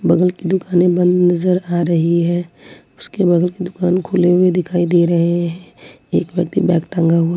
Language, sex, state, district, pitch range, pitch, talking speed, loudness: Hindi, female, Jharkhand, Ranchi, 170-180 Hz, 175 Hz, 185 wpm, -16 LUFS